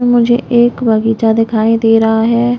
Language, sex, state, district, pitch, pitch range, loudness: Hindi, female, Chhattisgarh, Raigarh, 230 Hz, 225-240 Hz, -11 LUFS